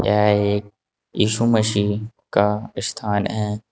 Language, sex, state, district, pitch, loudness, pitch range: Hindi, male, Uttar Pradesh, Saharanpur, 105 Hz, -21 LUFS, 105-110 Hz